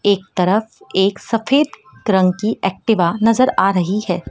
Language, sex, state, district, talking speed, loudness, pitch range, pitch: Hindi, female, Madhya Pradesh, Dhar, 155 wpm, -17 LUFS, 190-225 Hz, 200 Hz